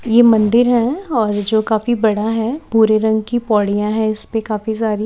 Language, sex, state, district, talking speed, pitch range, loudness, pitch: Hindi, female, Haryana, Rohtak, 190 wpm, 215-235 Hz, -16 LUFS, 220 Hz